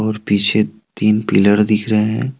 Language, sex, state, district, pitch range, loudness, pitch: Hindi, male, Jharkhand, Deoghar, 105-110 Hz, -15 LUFS, 105 Hz